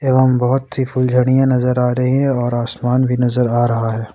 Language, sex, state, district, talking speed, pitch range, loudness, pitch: Hindi, male, Jharkhand, Ranchi, 215 wpm, 120-130 Hz, -16 LUFS, 125 Hz